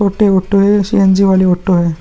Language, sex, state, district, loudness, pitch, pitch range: Hindi, male, Uttar Pradesh, Muzaffarnagar, -11 LUFS, 195 Hz, 185-200 Hz